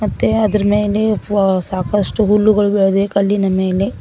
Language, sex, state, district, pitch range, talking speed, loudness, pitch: Kannada, female, Karnataka, Koppal, 195-210 Hz, 135 wpm, -15 LUFS, 205 Hz